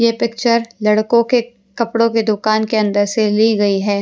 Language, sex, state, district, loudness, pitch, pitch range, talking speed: Hindi, female, Punjab, Pathankot, -15 LUFS, 220 Hz, 210-230 Hz, 195 wpm